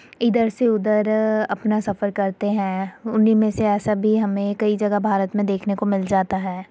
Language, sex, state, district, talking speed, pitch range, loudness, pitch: Hindi, female, Uttar Pradesh, Muzaffarnagar, 195 wpm, 200-215 Hz, -20 LUFS, 210 Hz